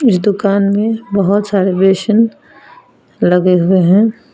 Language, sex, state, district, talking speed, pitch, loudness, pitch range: Hindi, female, Jharkhand, Palamu, 125 wpm, 200 Hz, -12 LUFS, 190-220 Hz